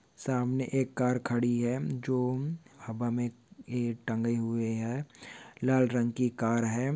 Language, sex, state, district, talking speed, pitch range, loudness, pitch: Hindi, male, Maharashtra, Dhule, 140 wpm, 115-130 Hz, -31 LUFS, 120 Hz